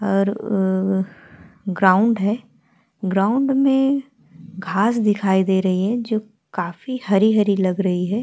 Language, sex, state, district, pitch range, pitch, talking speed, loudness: Hindi, female, Bihar, Vaishali, 190-225 Hz, 200 Hz, 125 wpm, -19 LUFS